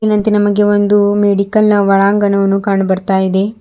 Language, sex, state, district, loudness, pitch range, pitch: Kannada, female, Karnataka, Bidar, -12 LUFS, 195-205 Hz, 205 Hz